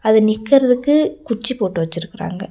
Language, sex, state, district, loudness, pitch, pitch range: Tamil, female, Tamil Nadu, Nilgiris, -17 LUFS, 220 Hz, 195-255 Hz